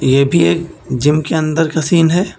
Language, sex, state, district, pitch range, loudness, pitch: Hindi, male, Uttar Pradesh, Lucknow, 140-165 Hz, -14 LUFS, 155 Hz